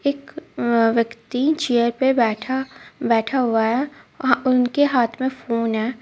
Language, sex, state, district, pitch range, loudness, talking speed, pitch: Hindi, female, Jharkhand, Ranchi, 230-270 Hz, -20 LUFS, 150 wpm, 250 Hz